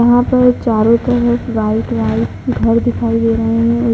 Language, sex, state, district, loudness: Hindi, female, Bihar, Jahanabad, -14 LUFS